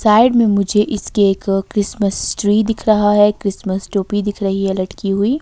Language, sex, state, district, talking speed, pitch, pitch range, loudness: Hindi, female, Himachal Pradesh, Shimla, 190 wpm, 205 Hz, 195-215 Hz, -16 LUFS